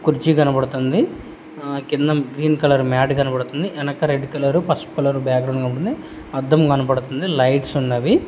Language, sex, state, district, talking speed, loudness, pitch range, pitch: Telugu, male, Telangana, Hyderabad, 140 wpm, -19 LUFS, 135-155 Hz, 140 Hz